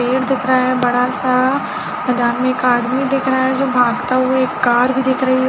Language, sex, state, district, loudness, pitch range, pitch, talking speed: Hindi, female, Chhattisgarh, Balrampur, -16 LUFS, 250-260 Hz, 255 Hz, 240 wpm